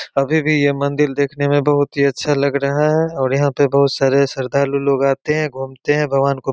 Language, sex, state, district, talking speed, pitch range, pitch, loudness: Hindi, male, Bihar, Begusarai, 255 wpm, 135-145 Hz, 140 Hz, -17 LUFS